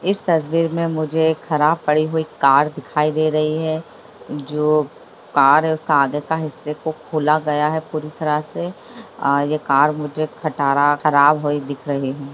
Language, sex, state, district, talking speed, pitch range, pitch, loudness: Hindi, female, Bihar, Lakhisarai, 170 wpm, 145-160 Hz, 150 Hz, -19 LUFS